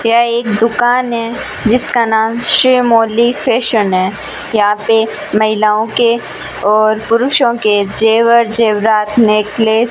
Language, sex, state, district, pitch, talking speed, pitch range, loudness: Hindi, female, Rajasthan, Bikaner, 230 Hz, 120 wpm, 215-240 Hz, -12 LUFS